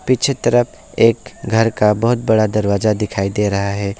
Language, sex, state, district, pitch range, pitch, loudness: Hindi, male, West Bengal, Alipurduar, 105-120 Hz, 110 Hz, -16 LUFS